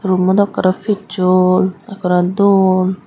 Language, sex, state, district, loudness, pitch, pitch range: Chakma, female, Tripura, Dhalai, -14 LUFS, 185 Hz, 185-200 Hz